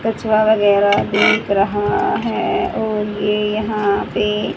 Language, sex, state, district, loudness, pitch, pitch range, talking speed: Hindi, female, Haryana, Jhajjar, -17 LUFS, 210 Hz, 205-215 Hz, 120 wpm